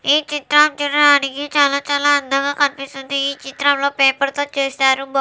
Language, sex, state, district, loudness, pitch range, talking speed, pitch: Telugu, female, Andhra Pradesh, Anantapur, -16 LUFS, 275-290 Hz, 140 wpm, 280 Hz